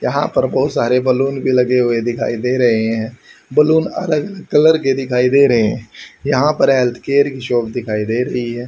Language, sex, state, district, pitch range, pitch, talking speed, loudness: Hindi, male, Haryana, Rohtak, 120-140 Hz, 125 Hz, 205 wpm, -15 LUFS